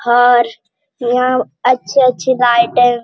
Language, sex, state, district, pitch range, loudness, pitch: Hindi, male, Uttarakhand, Uttarkashi, 240-255 Hz, -13 LUFS, 245 Hz